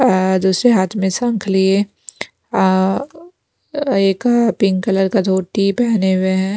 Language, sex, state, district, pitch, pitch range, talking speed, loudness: Hindi, female, Punjab, Pathankot, 195 Hz, 190-235 Hz, 130 wpm, -16 LUFS